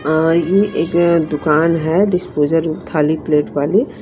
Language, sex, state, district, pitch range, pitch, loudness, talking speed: Hindi, female, Punjab, Kapurthala, 150-170 Hz, 160 Hz, -15 LUFS, 120 wpm